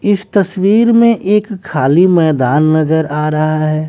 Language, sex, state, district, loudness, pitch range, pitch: Hindi, male, Bihar, West Champaran, -12 LUFS, 155-205 Hz, 170 Hz